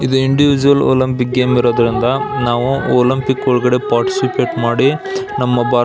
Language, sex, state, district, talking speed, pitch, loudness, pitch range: Kannada, male, Karnataka, Belgaum, 135 wpm, 125 Hz, -14 LUFS, 120-135 Hz